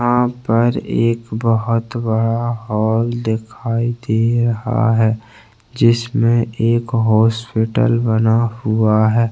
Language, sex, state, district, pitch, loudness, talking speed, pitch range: Hindi, male, Chhattisgarh, Bastar, 115 Hz, -17 LUFS, 95 wpm, 110-120 Hz